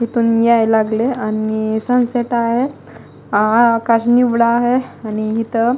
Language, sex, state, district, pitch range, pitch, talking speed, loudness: Marathi, female, Maharashtra, Mumbai Suburban, 220-240 Hz, 235 Hz, 135 wpm, -15 LUFS